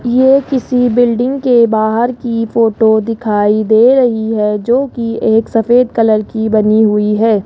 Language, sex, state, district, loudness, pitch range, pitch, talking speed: Hindi, female, Rajasthan, Jaipur, -12 LUFS, 220-245 Hz, 230 Hz, 160 wpm